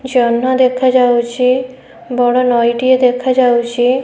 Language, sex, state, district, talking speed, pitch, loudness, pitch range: Odia, female, Odisha, Khordha, 90 wpm, 250 Hz, -13 LUFS, 240-255 Hz